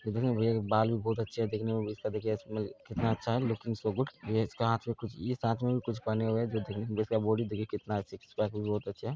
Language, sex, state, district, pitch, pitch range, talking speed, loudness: Bhojpuri, male, Bihar, Saran, 110 Hz, 105-115 Hz, 260 wpm, -33 LUFS